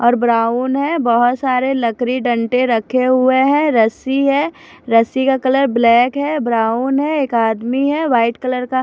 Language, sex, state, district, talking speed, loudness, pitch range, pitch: Hindi, female, Odisha, Khordha, 170 wpm, -15 LUFS, 235-270 Hz, 255 Hz